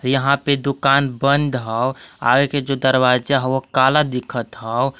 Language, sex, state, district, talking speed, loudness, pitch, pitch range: Magahi, male, Jharkhand, Palamu, 155 wpm, -18 LUFS, 135 Hz, 130-140 Hz